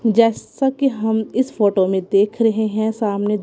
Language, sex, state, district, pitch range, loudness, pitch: Hindi, female, Punjab, Kapurthala, 210-230 Hz, -18 LUFS, 220 Hz